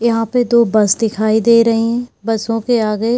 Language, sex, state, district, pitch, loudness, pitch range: Hindi, female, Jharkhand, Jamtara, 230 Hz, -14 LUFS, 220-235 Hz